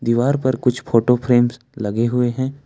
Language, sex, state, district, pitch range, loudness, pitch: Hindi, male, Jharkhand, Ranchi, 120-130 Hz, -18 LUFS, 125 Hz